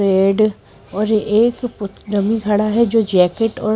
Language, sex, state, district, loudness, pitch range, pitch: Hindi, female, Himachal Pradesh, Shimla, -16 LUFS, 200-225 Hz, 215 Hz